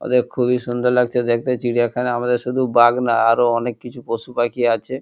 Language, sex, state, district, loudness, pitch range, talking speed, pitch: Bengali, male, West Bengal, Kolkata, -18 LUFS, 120-125 Hz, 190 wpm, 120 Hz